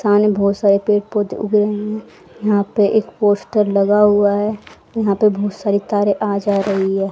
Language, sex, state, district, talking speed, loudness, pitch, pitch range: Hindi, female, Haryana, Rohtak, 200 wpm, -16 LUFS, 205 Hz, 200-210 Hz